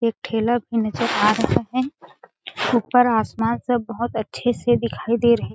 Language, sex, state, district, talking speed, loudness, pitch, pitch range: Hindi, female, Chhattisgarh, Sarguja, 185 wpm, -21 LUFS, 230 Hz, 220-240 Hz